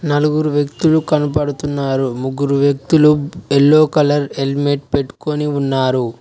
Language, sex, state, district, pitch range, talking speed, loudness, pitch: Telugu, male, Telangana, Mahabubabad, 140-150 Hz, 95 wpm, -16 LUFS, 145 Hz